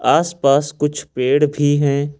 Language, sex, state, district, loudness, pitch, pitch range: Hindi, male, Jharkhand, Ranchi, -17 LUFS, 145 Hz, 140-150 Hz